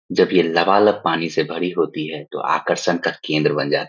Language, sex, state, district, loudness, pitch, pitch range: Hindi, male, Bihar, Saharsa, -19 LUFS, 85 Hz, 80-100 Hz